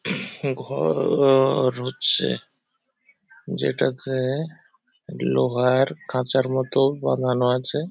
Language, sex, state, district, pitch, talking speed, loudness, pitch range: Bengali, male, West Bengal, Paschim Medinipur, 135 Hz, 70 wpm, -22 LUFS, 130-155 Hz